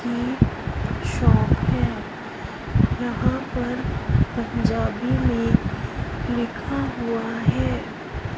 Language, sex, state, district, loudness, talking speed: Hindi, female, Punjab, Fazilka, -24 LUFS, 70 wpm